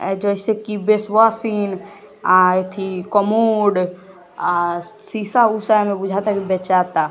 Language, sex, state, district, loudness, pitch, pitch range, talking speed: Hindi, male, Bihar, West Champaran, -18 LUFS, 200 Hz, 185-215 Hz, 40 wpm